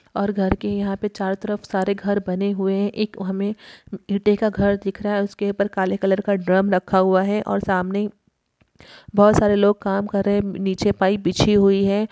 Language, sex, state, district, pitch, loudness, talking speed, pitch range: Hindi, female, Uttar Pradesh, Varanasi, 200 Hz, -20 LUFS, 215 wpm, 195-205 Hz